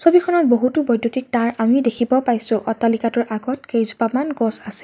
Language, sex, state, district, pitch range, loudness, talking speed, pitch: Assamese, female, Assam, Kamrup Metropolitan, 230-260 Hz, -19 LUFS, 150 wpm, 235 Hz